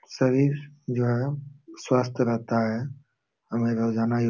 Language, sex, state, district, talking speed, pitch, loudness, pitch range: Hindi, male, Uttar Pradesh, Jalaun, 140 wpm, 125 Hz, -26 LUFS, 115-140 Hz